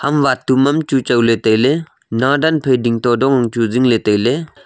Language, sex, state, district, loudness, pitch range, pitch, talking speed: Wancho, male, Arunachal Pradesh, Longding, -15 LUFS, 115-140 Hz, 130 Hz, 205 wpm